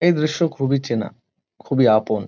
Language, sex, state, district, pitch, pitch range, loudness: Bengali, male, West Bengal, Kolkata, 135 Hz, 115-155 Hz, -20 LUFS